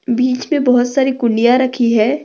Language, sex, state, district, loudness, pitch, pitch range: Hindi, female, Maharashtra, Chandrapur, -14 LUFS, 250 Hz, 240-265 Hz